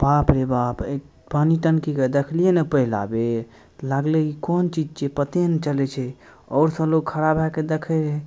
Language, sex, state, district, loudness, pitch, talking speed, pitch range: Maithili, male, Bihar, Madhepura, -22 LUFS, 150 Hz, 210 wpm, 135-160 Hz